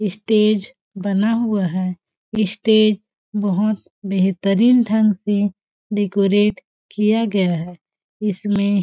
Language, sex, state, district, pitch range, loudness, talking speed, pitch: Hindi, female, Chhattisgarh, Balrampur, 195-215 Hz, -19 LUFS, 100 wpm, 205 Hz